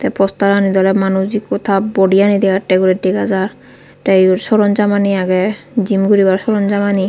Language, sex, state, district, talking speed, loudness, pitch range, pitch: Chakma, female, Tripura, Unakoti, 150 wpm, -13 LUFS, 190-205 Hz, 195 Hz